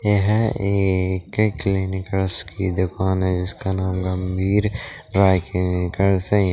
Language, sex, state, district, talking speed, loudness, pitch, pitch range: Hindi, male, Bihar, Darbhanga, 85 wpm, -21 LUFS, 95 Hz, 95-100 Hz